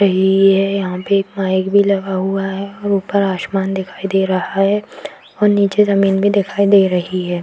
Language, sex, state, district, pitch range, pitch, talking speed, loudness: Hindi, female, Bihar, Madhepura, 190-200 Hz, 195 Hz, 210 wpm, -16 LUFS